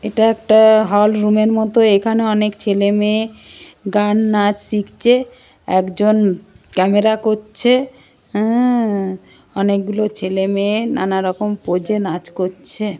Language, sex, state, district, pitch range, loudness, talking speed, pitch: Bengali, female, West Bengal, Purulia, 200-220 Hz, -16 LUFS, 130 wpm, 210 Hz